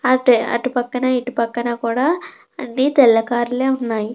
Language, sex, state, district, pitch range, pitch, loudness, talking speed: Telugu, female, Andhra Pradesh, Krishna, 235-255 Hz, 245 Hz, -18 LUFS, 130 wpm